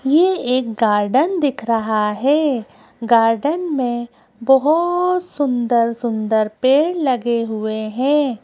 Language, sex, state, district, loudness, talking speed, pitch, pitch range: Hindi, female, Madhya Pradesh, Bhopal, -17 LUFS, 105 wpm, 250 Hz, 230-290 Hz